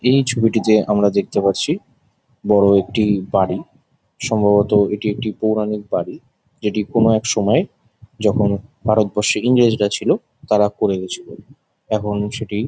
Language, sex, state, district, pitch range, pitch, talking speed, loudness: Bengali, male, West Bengal, Jalpaiguri, 105-110 Hz, 105 Hz, 125 wpm, -18 LUFS